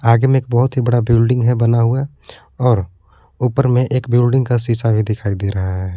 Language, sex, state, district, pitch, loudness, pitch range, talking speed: Hindi, male, Jharkhand, Palamu, 120 Hz, -16 LUFS, 110-125 Hz, 220 wpm